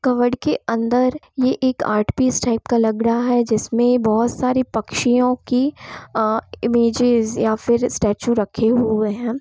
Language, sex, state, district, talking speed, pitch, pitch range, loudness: Hindi, female, Bihar, Gopalganj, 165 wpm, 235 Hz, 225-250 Hz, -19 LUFS